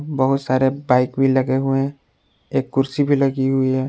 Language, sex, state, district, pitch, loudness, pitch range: Hindi, male, Jharkhand, Palamu, 135 Hz, -19 LUFS, 130-135 Hz